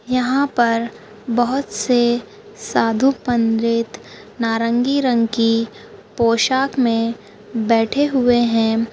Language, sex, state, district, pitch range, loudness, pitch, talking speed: Hindi, female, Rajasthan, Churu, 225-250 Hz, -18 LUFS, 230 Hz, 80 wpm